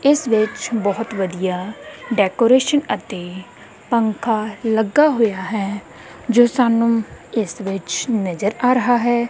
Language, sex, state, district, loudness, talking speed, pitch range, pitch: Punjabi, female, Punjab, Kapurthala, -18 LUFS, 115 wpm, 195-240 Hz, 225 Hz